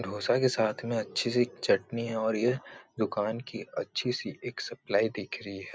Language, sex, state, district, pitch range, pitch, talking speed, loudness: Hindi, male, Bihar, Supaul, 110-120 Hz, 115 Hz, 200 wpm, -30 LUFS